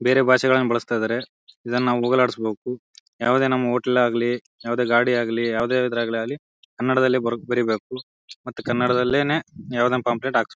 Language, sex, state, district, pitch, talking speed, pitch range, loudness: Kannada, male, Karnataka, Bijapur, 125 Hz, 120 wpm, 120-130 Hz, -22 LUFS